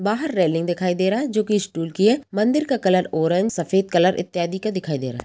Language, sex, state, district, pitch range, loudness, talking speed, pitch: Hindi, female, Bihar, Sitamarhi, 175-210 Hz, -21 LUFS, 265 wpm, 185 Hz